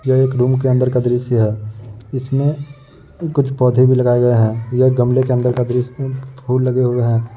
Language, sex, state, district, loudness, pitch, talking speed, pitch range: Hindi, male, Uttar Pradesh, Muzaffarnagar, -16 LUFS, 125 Hz, 205 wpm, 120-130 Hz